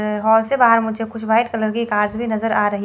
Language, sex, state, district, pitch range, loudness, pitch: Hindi, female, Chandigarh, Chandigarh, 210-230 Hz, -18 LUFS, 220 Hz